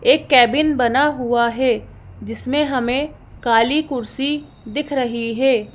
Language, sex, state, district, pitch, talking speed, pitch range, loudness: Hindi, female, Madhya Pradesh, Bhopal, 255 Hz, 125 wpm, 235-290 Hz, -18 LUFS